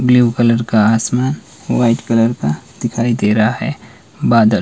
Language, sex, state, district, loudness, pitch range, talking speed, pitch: Hindi, male, Himachal Pradesh, Shimla, -15 LUFS, 110-120 Hz, 155 wpm, 115 Hz